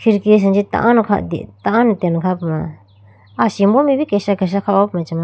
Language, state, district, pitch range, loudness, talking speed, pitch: Idu Mishmi, Arunachal Pradesh, Lower Dibang Valley, 170-215 Hz, -16 LUFS, 195 wpm, 200 Hz